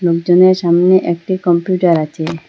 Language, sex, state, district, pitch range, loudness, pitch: Bengali, female, Assam, Hailakandi, 170-185 Hz, -13 LUFS, 175 Hz